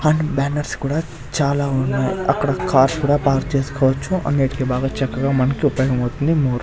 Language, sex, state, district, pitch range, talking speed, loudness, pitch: Telugu, male, Andhra Pradesh, Sri Satya Sai, 130-145 Hz, 155 wpm, -19 LUFS, 140 Hz